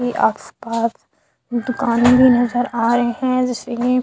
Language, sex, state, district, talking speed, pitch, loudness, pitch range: Hindi, female, Chhattisgarh, Sukma, 135 wpm, 245 Hz, -17 LUFS, 235-250 Hz